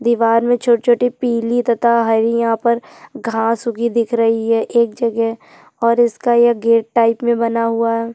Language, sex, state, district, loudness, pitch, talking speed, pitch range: Hindi, female, Chhattisgarh, Jashpur, -16 LUFS, 235 Hz, 190 wpm, 230-235 Hz